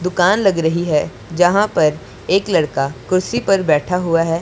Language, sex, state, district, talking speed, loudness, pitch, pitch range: Hindi, male, Punjab, Pathankot, 175 wpm, -16 LUFS, 175 Hz, 155-185 Hz